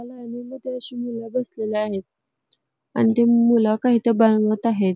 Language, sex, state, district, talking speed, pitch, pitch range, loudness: Marathi, female, Karnataka, Belgaum, 145 wpm, 230 Hz, 215-240 Hz, -21 LUFS